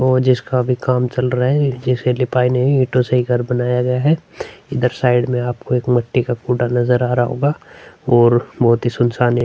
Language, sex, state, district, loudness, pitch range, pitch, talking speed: Hindi, male, Chhattisgarh, Sukma, -17 LUFS, 120-130 Hz, 125 Hz, 215 wpm